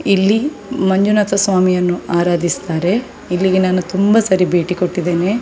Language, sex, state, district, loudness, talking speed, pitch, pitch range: Kannada, female, Karnataka, Dakshina Kannada, -15 LUFS, 120 wpm, 185 Hz, 175-200 Hz